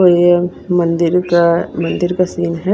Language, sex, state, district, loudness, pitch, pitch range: Hindi, female, Punjab, Kapurthala, -14 LUFS, 175 Hz, 170-180 Hz